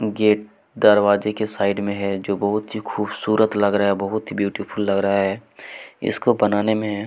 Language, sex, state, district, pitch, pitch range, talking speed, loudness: Hindi, male, Chhattisgarh, Kabirdham, 105 Hz, 100-105 Hz, 195 wpm, -20 LUFS